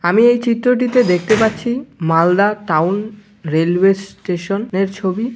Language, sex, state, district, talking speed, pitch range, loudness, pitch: Bengali, male, West Bengal, Malda, 110 wpm, 180-230 Hz, -16 LUFS, 200 Hz